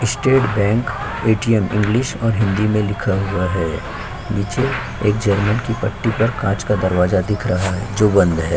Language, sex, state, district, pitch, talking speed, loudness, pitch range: Hindi, male, Chhattisgarh, Korba, 105 Hz, 180 wpm, -18 LUFS, 95-115 Hz